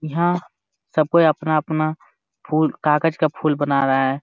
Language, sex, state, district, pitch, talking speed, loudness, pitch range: Hindi, male, Jharkhand, Jamtara, 155 Hz, 155 wpm, -20 LUFS, 140-160 Hz